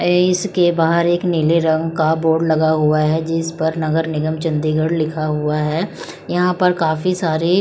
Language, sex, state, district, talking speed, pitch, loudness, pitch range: Hindi, female, Chandigarh, Chandigarh, 180 wpm, 160 Hz, -17 LUFS, 155-175 Hz